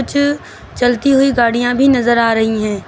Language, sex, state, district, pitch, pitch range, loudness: Hindi, female, Uttar Pradesh, Lucknow, 245 Hz, 230-270 Hz, -13 LUFS